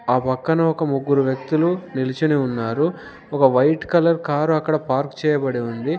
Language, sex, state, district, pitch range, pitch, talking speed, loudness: Telugu, male, Telangana, Komaram Bheem, 130-160 Hz, 145 Hz, 150 wpm, -20 LUFS